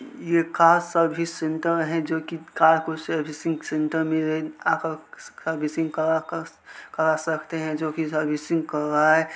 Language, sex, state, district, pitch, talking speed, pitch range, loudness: Maithili, male, Bihar, Supaul, 160 Hz, 110 wpm, 155-165 Hz, -24 LUFS